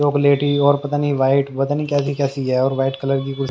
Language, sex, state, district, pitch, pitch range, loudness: Hindi, male, Haryana, Jhajjar, 140 Hz, 135-145 Hz, -18 LUFS